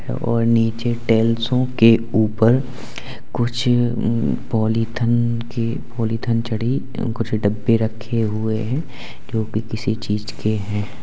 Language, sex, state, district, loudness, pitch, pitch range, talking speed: Hindi, male, Uttar Pradesh, Lalitpur, -20 LUFS, 115 Hz, 110-120 Hz, 125 wpm